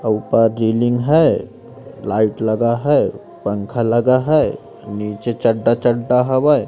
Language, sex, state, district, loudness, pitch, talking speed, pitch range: Hindi, female, Madhya Pradesh, Umaria, -17 LUFS, 115 Hz, 115 wpm, 110-130 Hz